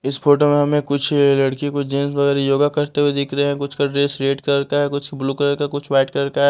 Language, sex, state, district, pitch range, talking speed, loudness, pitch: Hindi, male, Punjab, Fazilka, 140-145 Hz, 275 wpm, -18 LUFS, 140 Hz